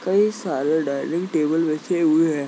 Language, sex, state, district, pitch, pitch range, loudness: Hindi, male, Uttar Pradesh, Jalaun, 160 Hz, 155-175 Hz, -21 LUFS